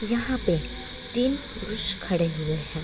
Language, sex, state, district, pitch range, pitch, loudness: Hindi, female, Bihar, East Champaran, 160-235 Hz, 200 Hz, -25 LUFS